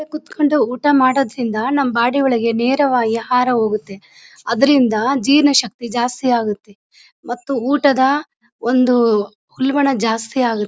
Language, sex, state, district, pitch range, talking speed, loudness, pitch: Kannada, female, Karnataka, Bellary, 230-275 Hz, 120 wpm, -16 LUFS, 245 Hz